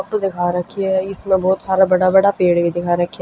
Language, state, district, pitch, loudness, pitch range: Haryanvi, Haryana, Rohtak, 190 Hz, -17 LUFS, 175-195 Hz